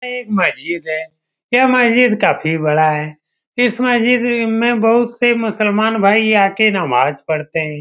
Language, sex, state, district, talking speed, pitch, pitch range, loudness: Hindi, male, Bihar, Saran, 155 wpm, 215 Hz, 160-240 Hz, -14 LUFS